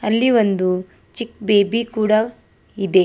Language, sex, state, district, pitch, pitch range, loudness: Kannada, female, Karnataka, Bangalore, 215 Hz, 195-230 Hz, -18 LUFS